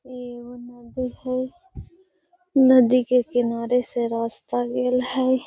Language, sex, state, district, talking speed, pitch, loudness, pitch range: Magahi, female, Bihar, Gaya, 120 wpm, 250 Hz, -22 LUFS, 245-260 Hz